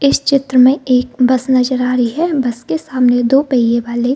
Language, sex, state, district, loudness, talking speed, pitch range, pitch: Hindi, female, Bihar, Gaya, -13 LUFS, 230 wpm, 245-275 Hz, 255 Hz